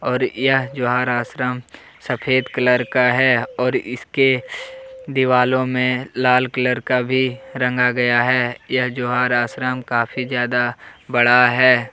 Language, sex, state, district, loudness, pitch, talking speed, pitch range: Hindi, male, Jharkhand, Deoghar, -18 LUFS, 125 Hz, 130 wpm, 125-130 Hz